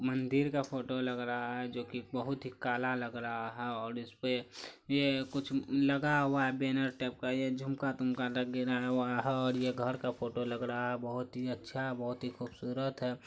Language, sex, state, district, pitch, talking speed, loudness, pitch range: Hindi, male, Bihar, Araria, 125 Hz, 185 wpm, -35 LUFS, 125-130 Hz